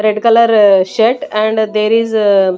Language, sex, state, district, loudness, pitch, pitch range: English, female, Chandigarh, Chandigarh, -11 LUFS, 215 Hz, 210-225 Hz